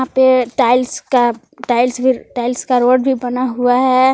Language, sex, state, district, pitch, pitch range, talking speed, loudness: Hindi, female, Jharkhand, Palamu, 250 Hz, 245-260 Hz, 175 wpm, -15 LUFS